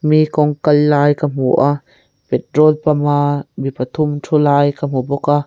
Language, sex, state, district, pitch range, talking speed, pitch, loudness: Mizo, female, Mizoram, Aizawl, 145-150 Hz, 185 wpm, 145 Hz, -15 LUFS